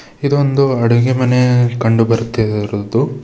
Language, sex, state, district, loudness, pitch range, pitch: Kannada, male, Karnataka, Bidar, -14 LUFS, 115-130 Hz, 120 Hz